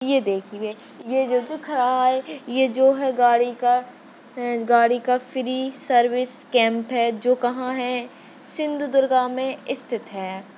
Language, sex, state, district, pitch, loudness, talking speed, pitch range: Hindi, female, Maharashtra, Sindhudurg, 250 Hz, -22 LUFS, 140 wpm, 240-265 Hz